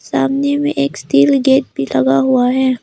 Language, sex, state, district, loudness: Hindi, female, Arunachal Pradesh, Lower Dibang Valley, -14 LUFS